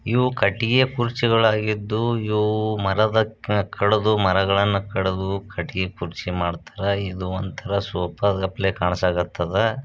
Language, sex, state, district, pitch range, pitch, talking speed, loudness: Kannada, male, Karnataka, Bijapur, 95-110 Hz, 100 Hz, 95 wpm, -22 LUFS